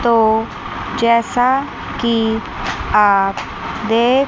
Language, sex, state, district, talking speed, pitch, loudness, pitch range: Hindi, female, Chandigarh, Chandigarh, 70 wpm, 230 Hz, -17 LUFS, 225-235 Hz